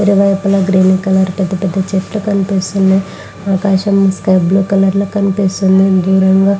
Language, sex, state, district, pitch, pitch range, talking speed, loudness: Telugu, female, Andhra Pradesh, Visakhapatnam, 195 Hz, 190-195 Hz, 135 wpm, -12 LUFS